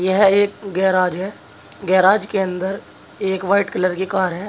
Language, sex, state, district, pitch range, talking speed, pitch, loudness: Hindi, male, Uttar Pradesh, Saharanpur, 185-200 Hz, 175 wpm, 190 Hz, -18 LUFS